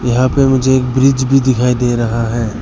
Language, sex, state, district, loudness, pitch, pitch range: Hindi, male, Arunachal Pradesh, Lower Dibang Valley, -13 LUFS, 125 Hz, 120-130 Hz